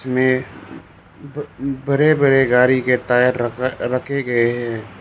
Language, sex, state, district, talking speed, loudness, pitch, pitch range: Hindi, male, Arunachal Pradesh, Lower Dibang Valley, 105 wpm, -17 LUFS, 125 Hz, 120-140 Hz